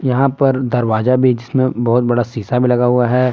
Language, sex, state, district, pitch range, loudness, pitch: Hindi, male, Jharkhand, Palamu, 120-130 Hz, -15 LUFS, 125 Hz